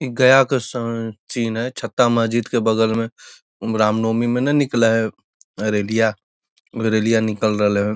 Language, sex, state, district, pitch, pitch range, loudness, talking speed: Magahi, male, Bihar, Gaya, 115 Hz, 110-120 Hz, -19 LUFS, 160 wpm